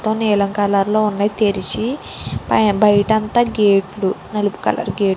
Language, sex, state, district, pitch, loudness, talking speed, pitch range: Telugu, female, Andhra Pradesh, Srikakulam, 210 Hz, -17 LUFS, 125 wpm, 200-215 Hz